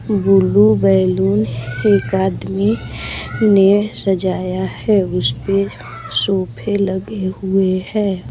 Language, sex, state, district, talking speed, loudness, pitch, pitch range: Hindi, female, Bihar, Patna, 95 wpm, -16 LUFS, 190 Hz, 120-200 Hz